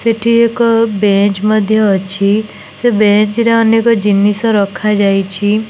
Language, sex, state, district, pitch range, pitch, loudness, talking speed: Odia, female, Odisha, Nuapada, 205-230 Hz, 215 Hz, -12 LUFS, 105 wpm